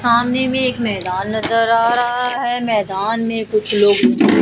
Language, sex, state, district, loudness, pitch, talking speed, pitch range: Hindi, female, Odisha, Malkangiri, -16 LUFS, 230 Hz, 165 wpm, 210-245 Hz